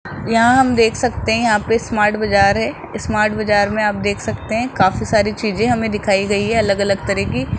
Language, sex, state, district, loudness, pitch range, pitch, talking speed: Hindi, male, Rajasthan, Jaipur, -16 LUFS, 200-225 Hz, 210 Hz, 230 wpm